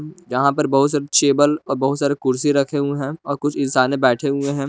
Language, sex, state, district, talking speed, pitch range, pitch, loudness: Hindi, male, Jharkhand, Palamu, 230 wpm, 140-145 Hz, 140 Hz, -19 LUFS